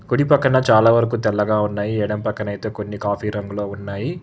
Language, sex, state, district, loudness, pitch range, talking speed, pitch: Telugu, male, Telangana, Hyderabad, -19 LUFS, 105-115 Hz, 185 wpm, 105 Hz